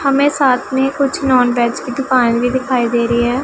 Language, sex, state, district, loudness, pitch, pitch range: Hindi, female, Punjab, Pathankot, -15 LUFS, 255 Hz, 240-270 Hz